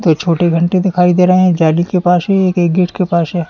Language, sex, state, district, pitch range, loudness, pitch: Hindi, male, Uttar Pradesh, Lalitpur, 170-185 Hz, -12 LUFS, 180 Hz